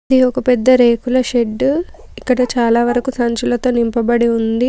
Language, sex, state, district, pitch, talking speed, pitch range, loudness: Telugu, female, Telangana, Komaram Bheem, 245 Hz, 155 wpm, 235-255 Hz, -15 LUFS